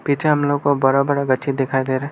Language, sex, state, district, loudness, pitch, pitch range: Hindi, male, Arunachal Pradesh, Lower Dibang Valley, -18 LUFS, 140 Hz, 135-145 Hz